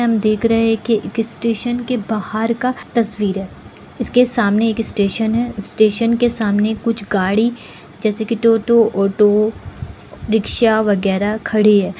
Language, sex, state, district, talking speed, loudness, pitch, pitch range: Hindi, female, Bihar, Kishanganj, 155 wpm, -17 LUFS, 220 Hz, 210-230 Hz